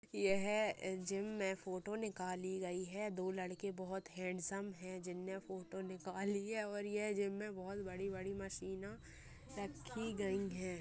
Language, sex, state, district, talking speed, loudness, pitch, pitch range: Hindi, female, Uttar Pradesh, Deoria, 155 wpm, -43 LUFS, 195 Hz, 185-200 Hz